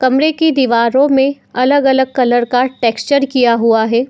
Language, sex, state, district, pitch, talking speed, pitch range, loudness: Hindi, female, Uttar Pradesh, Muzaffarnagar, 255 Hz, 160 wpm, 240-275 Hz, -13 LUFS